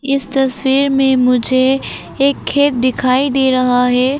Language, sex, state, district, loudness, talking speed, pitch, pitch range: Hindi, female, Arunachal Pradesh, Papum Pare, -14 LUFS, 145 wpm, 265 Hz, 255-275 Hz